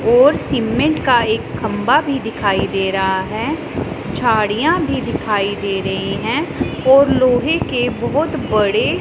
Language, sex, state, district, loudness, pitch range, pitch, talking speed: Hindi, female, Punjab, Pathankot, -16 LUFS, 205-280 Hz, 240 Hz, 140 wpm